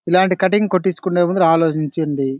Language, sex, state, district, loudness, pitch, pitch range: Telugu, male, Andhra Pradesh, Anantapur, -17 LUFS, 175 Hz, 155-185 Hz